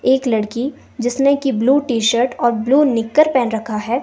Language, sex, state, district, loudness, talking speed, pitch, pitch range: Hindi, female, Himachal Pradesh, Shimla, -16 LUFS, 195 wpm, 245 Hz, 230-270 Hz